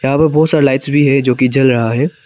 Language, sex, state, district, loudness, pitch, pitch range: Hindi, male, Arunachal Pradesh, Papum Pare, -12 LUFS, 135 Hz, 130-150 Hz